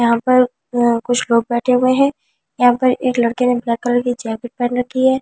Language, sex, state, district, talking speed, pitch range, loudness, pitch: Hindi, female, Delhi, New Delhi, 255 wpm, 240-255 Hz, -16 LUFS, 245 Hz